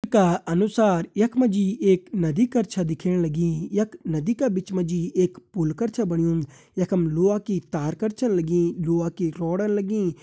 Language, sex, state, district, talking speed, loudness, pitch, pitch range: Hindi, male, Uttarakhand, Uttarkashi, 200 wpm, -23 LUFS, 180 Hz, 170-210 Hz